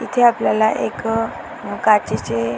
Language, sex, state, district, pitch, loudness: Marathi, female, Maharashtra, Dhule, 220 Hz, -18 LUFS